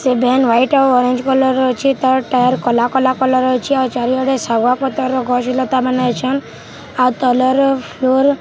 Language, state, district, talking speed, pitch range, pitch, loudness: Sambalpuri, Odisha, Sambalpur, 205 wpm, 250-265 Hz, 255 Hz, -15 LUFS